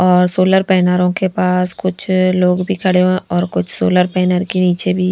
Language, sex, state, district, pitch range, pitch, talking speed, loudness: Hindi, female, Punjab, Fazilka, 180-185 Hz, 185 Hz, 220 wpm, -15 LUFS